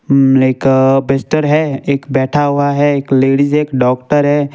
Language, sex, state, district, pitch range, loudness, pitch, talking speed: Hindi, male, Himachal Pradesh, Shimla, 135-145 Hz, -12 LUFS, 140 Hz, 170 wpm